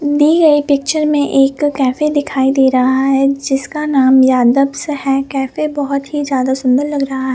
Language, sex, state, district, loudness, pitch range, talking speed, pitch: Hindi, female, Punjab, Fazilka, -13 LUFS, 265-290 Hz, 170 wpm, 275 Hz